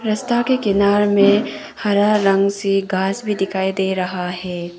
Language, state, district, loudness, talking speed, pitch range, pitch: Hindi, Arunachal Pradesh, Papum Pare, -18 LUFS, 165 wpm, 190-210 Hz, 200 Hz